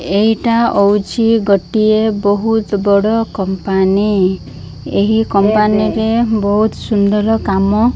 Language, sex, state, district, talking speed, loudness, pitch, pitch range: Odia, female, Odisha, Malkangiri, 105 wpm, -13 LUFS, 210 Hz, 200-220 Hz